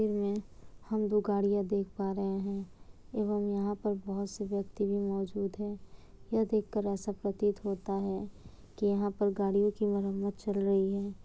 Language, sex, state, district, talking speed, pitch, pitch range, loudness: Hindi, female, Bihar, Kishanganj, 170 wpm, 200 Hz, 195-205 Hz, -33 LUFS